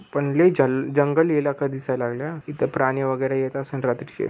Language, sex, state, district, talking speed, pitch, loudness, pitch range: Marathi, male, Maharashtra, Pune, 180 wpm, 140 Hz, -22 LUFS, 135-150 Hz